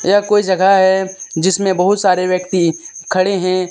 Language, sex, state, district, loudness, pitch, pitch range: Hindi, male, Jharkhand, Deoghar, -14 LUFS, 190 Hz, 185-195 Hz